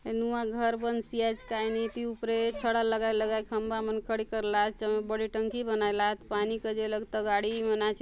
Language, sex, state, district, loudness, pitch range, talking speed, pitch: Halbi, female, Chhattisgarh, Bastar, -30 LUFS, 215-230 Hz, 225 wpm, 220 Hz